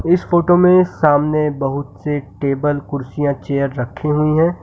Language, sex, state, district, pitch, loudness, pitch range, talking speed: Hindi, male, Uttar Pradesh, Lucknow, 145 Hz, -17 LUFS, 140-160 Hz, 155 wpm